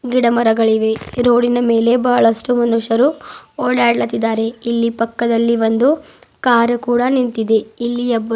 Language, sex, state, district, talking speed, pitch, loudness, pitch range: Kannada, female, Karnataka, Bidar, 130 wpm, 235 Hz, -15 LUFS, 225-245 Hz